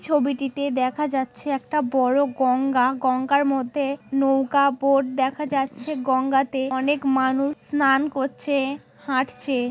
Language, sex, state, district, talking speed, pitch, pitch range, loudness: Bengali, female, West Bengal, Kolkata, 125 wpm, 270 Hz, 260-280 Hz, -22 LUFS